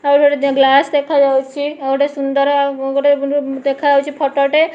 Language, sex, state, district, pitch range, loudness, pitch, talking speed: Odia, female, Odisha, Nuapada, 275-285 Hz, -15 LUFS, 280 Hz, 140 wpm